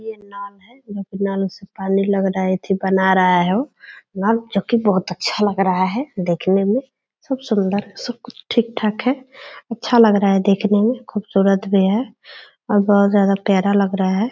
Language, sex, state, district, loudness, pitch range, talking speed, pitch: Hindi, female, Bihar, Purnia, -18 LUFS, 195-230 Hz, 185 wpm, 200 Hz